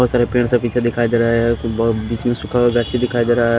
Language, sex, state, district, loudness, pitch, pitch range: Hindi, male, Delhi, New Delhi, -17 LUFS, 120 Hz, 115-120 Hz